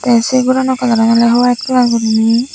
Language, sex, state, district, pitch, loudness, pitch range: Chakma, female, Tripura, Unakoti, 240 Hz, -12 LUFS, 230-255 Hz